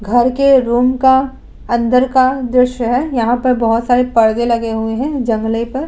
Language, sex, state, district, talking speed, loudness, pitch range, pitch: Hindi, female, Uttar Pradesh, Budaun, 185 wpm, -14 LUFS, 230-260 Hz, 245 Hz